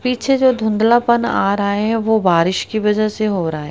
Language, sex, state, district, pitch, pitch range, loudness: Hindi, female, Haryana, Rohtak, 215 Hz, 200-235 Hz, -16 LUFS